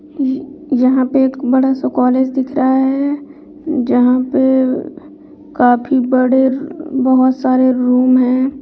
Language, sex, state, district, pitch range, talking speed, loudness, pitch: Hindi, female, Bihar, Bhagalpur, 255-290 Hz, 120 wpm, -14 LUFS, 265 Hz